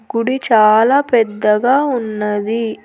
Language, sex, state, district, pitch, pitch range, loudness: Telugu, female, Andhra Pradesh, Annamaya, 225 Hz, 215-250 Hz, -14 LUFS